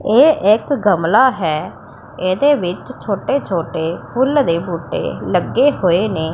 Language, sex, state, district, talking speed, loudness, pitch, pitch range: Punjabi, female, Punjab, Pathankot, 130 wpm, -16 LUFS, 205 Hz, 170-270 Hz